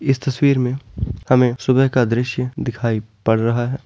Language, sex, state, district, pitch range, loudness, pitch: Hindi, male, Uttar Pradesh, Varanasi, 120-135 Hz, -19 LUFS, 125 Hz